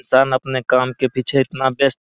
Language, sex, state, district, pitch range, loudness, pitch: Maithili, male, Bihar, Araria, 130-135 Hz, -18 LUFS, 130 Hz